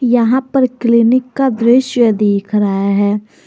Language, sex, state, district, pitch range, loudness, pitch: Hindi, female, Jharkhand, Garhwa, 210-255 Hz, -13 LUFS, 235 Hz